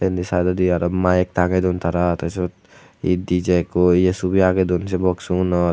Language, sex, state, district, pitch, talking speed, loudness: Chakma, male, Tripura, Unakoti, 90 Hz, 200 wpm, -19 LUFS